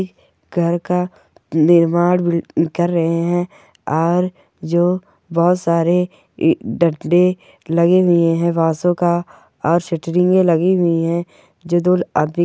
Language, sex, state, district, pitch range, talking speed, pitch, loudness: Hindi, male, Bihar, East Champaran, 170-180 Hz, 125 wpm, 175 Hz, -17 LUFS